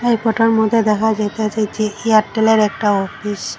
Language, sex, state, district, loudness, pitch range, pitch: Bengali, female, Assam, Hailakandi, -16 LUFS, 210-225 Hz, 215 Hz